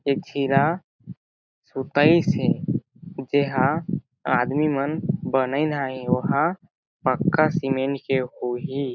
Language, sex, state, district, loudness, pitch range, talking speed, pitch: Chhattisgarhi, male, Chhattisgarh, Jashpur, -23 LUFS, 130-165 Hz, 95 wpm, 140 Hz